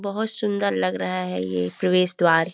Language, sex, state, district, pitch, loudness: Hindi, female, Chhattisgarh, Bilaspur, 165 Hz, -23 LUFS